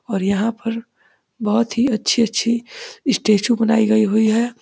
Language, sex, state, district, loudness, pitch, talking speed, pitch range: Hindi, male, Uttar Pradesh, Deoria, -18 LUFS, 230 Hz, 145 wpm, 215-235 Hz